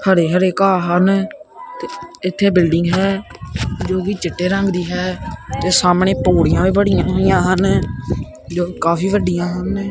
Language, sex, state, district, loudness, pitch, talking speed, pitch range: Punjabi, male, Punjab, Kapurthala, -16 LUFS, 185 Hz, 150 wpm, 180-195 Hz